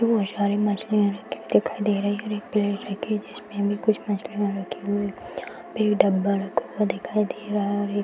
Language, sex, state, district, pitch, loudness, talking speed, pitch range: Hindi, female, Bihar, Bhagalpur, 205 Hz, -25 LUFS, 230 wpm, 200-210 Hz